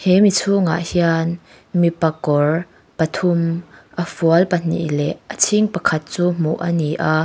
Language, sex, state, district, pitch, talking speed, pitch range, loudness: Mizo, female, Mizoram, Aizawl, 170 Hz, 140 wpm, 160-180 Hz, -18 LUFS